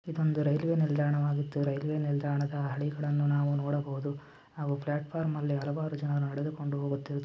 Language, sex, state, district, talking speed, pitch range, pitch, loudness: Kannada, male, Karnataka, Dharwad, 125 wpm, 145-150 Hz, 145 Hz, -31 LUFS